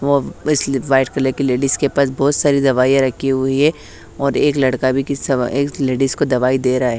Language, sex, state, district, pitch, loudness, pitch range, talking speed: Hindi, female, Haryana, Charkhi Dadri, 135 Hz, -16 LUFS, 130-140 Hz, 215 wpm